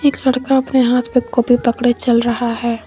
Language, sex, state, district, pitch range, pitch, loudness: Hindi, female, Jharkhand, Garhwa, 235-260 Hz, 245 Hz, -15 LUFS